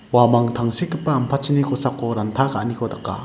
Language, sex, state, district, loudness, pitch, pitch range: Garo, male, Meghalaya, West Garo Hills, -20 LUFS, 125 Hz, 120-140 Hz